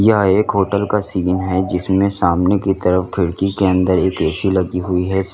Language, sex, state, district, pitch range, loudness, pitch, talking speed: Hindi, male, Uttar Pradesh, Lalitpur, 90-100 Hz, -17 LUFS, 95 Hz, 200 wpm